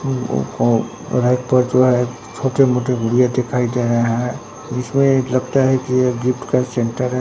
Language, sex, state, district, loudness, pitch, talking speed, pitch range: Hindi, male, Bihar, Katihar, -18 LUFS, 125 Hz, 175 wpm, 125-130 Hz